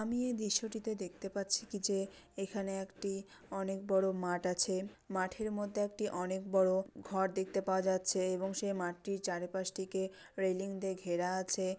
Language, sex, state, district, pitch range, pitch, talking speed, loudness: Bengali, female, West Bengal, Dakshin Dinajpur, 185-200 Hz, 195 Hz, 160 wpm, -37 LUFS